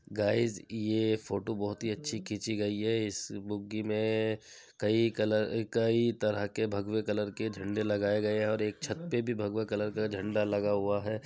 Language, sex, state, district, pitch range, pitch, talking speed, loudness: Hindi, male, Uttar Pradesh, Jyotiba Phule Nagar, 105-110 Hz, 110 Hz, 180 wpm, -32 LUFS